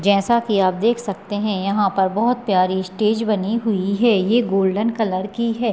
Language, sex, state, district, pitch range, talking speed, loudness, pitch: Hindi, female, Bihar, Madhepura, 195-230 Hz, 200 wpm, -19 LUFS, 205 Hz